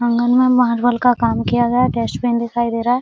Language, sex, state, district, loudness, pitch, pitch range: Hindi, female, Bihar, Araria, -16 LUFS, 240 Hz, 235-245 Hz